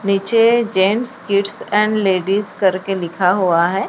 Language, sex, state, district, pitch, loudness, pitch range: Hindi, female, Maharashtra, Chandrapur, 195 Hz, -16 LUFS, 190-210 Hz